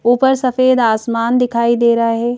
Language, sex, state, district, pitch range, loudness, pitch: Hindi, female, Madhya Pradesh, Bhopal, 230-250 Hz, -14 LUFS, 235 Hz